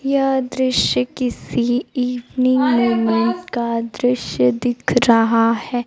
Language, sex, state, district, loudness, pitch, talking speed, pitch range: Hindi, female, Bihar, Kaimur, -18 LUFS, 240 Hz, 100 wpm, 230-255 Hz